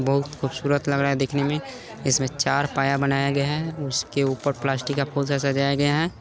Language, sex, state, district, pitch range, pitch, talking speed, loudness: Hindi, male, Bihar, Saran, 135-145 Hz, 140 Hz, 220 wpm, -23 LUFS